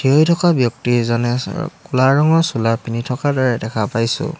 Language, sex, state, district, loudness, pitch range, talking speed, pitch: Assamese, male, Assam, Hailakandi, -17 LUFS, 115-155 Hz, 190 wpm, 130 Hz